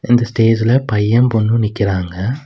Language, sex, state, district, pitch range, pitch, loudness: Tamil, male, Tamil Nadu, Nilgiris, 105-120 Hz, 115 Hz, -15 LUFS